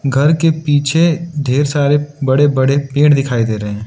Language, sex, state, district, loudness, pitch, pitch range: Hindi, male, Arunachal Pradesh, Lower Dibang Valley, -14 LUFS, 145 Hz, 135-150 Hz